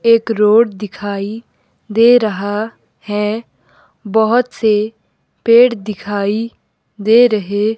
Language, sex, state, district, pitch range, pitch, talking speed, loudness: Hindi, female, Himachal Pradesh, Shimla, 210-230 Hz, 220 Hz, 95 wpm, -15 LUFS